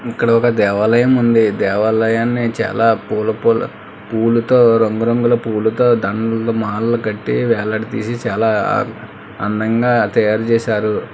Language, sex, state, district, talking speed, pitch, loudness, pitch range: Telugu, male, Telangana, Hyderabad, 100 wpm, 115 Hz, -16 LUFS, 110-115 Hz